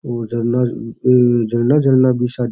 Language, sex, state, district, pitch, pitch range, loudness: Rajasthani, male, Rajasthan, Churu, 120 Hz, 120-125 Hz, -16 LUFS